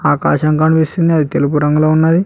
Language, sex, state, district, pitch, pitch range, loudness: Telugu, male, Telangana, Hyderabad, 155 Hz, 150-160 Hz, -13 LUFS